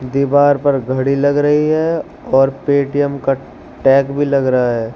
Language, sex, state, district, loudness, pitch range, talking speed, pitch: Hindi, male, Uttar Pradesh, Shamli, -15 LUFS, 135-145 Hz, 170 wpm, 140 Hz